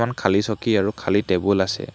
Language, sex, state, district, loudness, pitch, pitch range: Assamese, male, Assam, Hailakandi, -21 LUFS, 100 Hz, 95-110 Hz